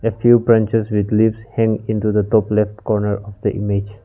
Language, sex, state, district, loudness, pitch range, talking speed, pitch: English, male, Nagaland, Kohima, -17 LUFS, 105-110 Hz, 205 wpm, 105 Hz